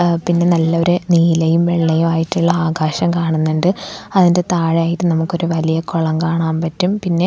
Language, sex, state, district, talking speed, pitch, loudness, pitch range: Malayalam, female, Kerala, Thiruvananthapuram, 130 wpm, 170 Hz, -16 LUFS, 165-175 Hz